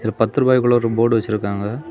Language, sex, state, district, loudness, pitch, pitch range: Tamil, male, Tamil Nadu, Kanyakumari, -18 LUFS, 115 Hz, 110-120 Hz